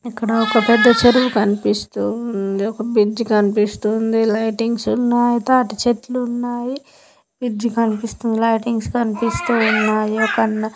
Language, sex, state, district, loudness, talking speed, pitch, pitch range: Telugu, female, Andhra Pradesh, Srikakulam, -18 LUFS, 115 wpm, 225 Hz, 215-240 Hz